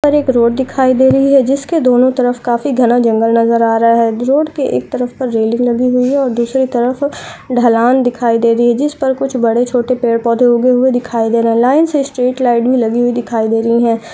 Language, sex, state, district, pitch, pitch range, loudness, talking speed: Hindi, female, Uttar Pradesh, Budaun, 245 Hz, 235-260 Hz, -12 LUFS, 230 wpm